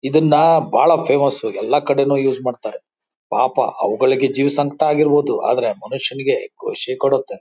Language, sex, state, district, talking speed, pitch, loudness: Kannada, male, Karnataka, Bijapur, 130 wpm, 150 Hz, -17 LUFS